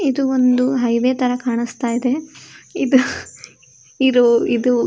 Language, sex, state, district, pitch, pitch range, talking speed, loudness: Kannada, female, Karnataka, Shimoga, 250 Hz, 235-260 Hz, 100 wpm, -17 LUFS